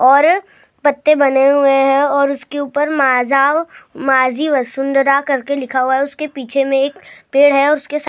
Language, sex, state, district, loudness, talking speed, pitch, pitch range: Hindi, male, Maharashtra, Gondia, -14 LUFS, 170 wpm, 280 Hz, 270-290 Hz